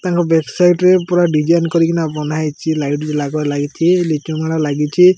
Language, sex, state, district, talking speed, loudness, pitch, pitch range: Odia, male, Odisha, Malkangiri, 175 wpm, -15 LUFS, 160 Hz, 150-175 Hz